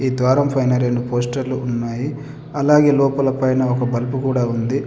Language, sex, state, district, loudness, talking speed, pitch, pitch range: Telugu, male, Telangana, Adilabad, -18 LUFS, 160 wpm, 130 Hz, 125-140 Hz